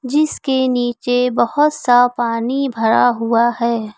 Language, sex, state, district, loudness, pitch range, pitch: Hindi, female, Uttar Pradesh, Lucknow, -16 LUFS, 235-265 Hz, 245 Hz